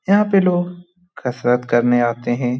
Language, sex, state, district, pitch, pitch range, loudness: Hindi, male, Bihar, Lakhisarai, 125 Hz, 120-180 Hz, -18 LUFS